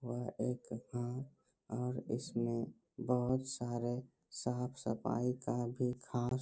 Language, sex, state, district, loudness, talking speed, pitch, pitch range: Hindi, male, Bihar, Bhagalpur, -39 LUFS, 110 wpm, 125 Hz, 120-125 Hz